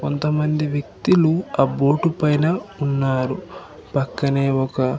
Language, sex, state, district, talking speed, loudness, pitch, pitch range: Telugu, male, Andhra Pradesh, Manyam, 85 wpm, -20 LUFS, 145 Hz, 135-155 Hz